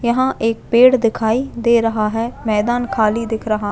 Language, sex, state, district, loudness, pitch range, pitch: Hindi, female, Chhattisgarh, Bastar, -16 LUFS, 220-240 Hz, 230 Hz